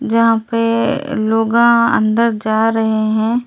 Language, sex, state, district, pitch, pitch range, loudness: Hindi, female, Delhi, New Delhi, 230 Hz, 220-235 Hz, -14 LUFS